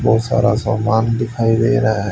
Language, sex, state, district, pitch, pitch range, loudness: Hindi, male, Haryana, Rohtak, 115 Hz, 110-115 Hz, -16 LUFS